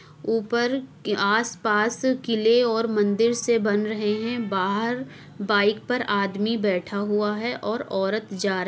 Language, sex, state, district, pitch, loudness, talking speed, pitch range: Hindi, female, Uttar Pradesh, Muzaffarnagar, 215 Hz, -24 LUFS, 145 wpm, 205-235 Hz